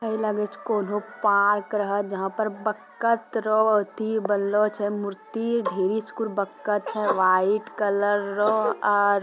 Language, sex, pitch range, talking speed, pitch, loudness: Magahi, female, 200-215 Hz, 130 wpm, 210 Hz, -24 LUFS